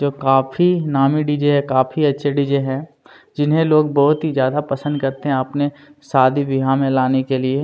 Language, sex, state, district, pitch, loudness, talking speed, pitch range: Hindi, male, Chhattisgarh, Kabirdham, 140 Hz, -17 LUFS, 210 wpm, 135-145 Hz